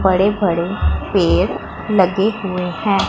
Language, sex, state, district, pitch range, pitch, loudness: Hindi, female, Punjab, Pathankot, 175-200 Hz, 190 Hz, -17 LUFS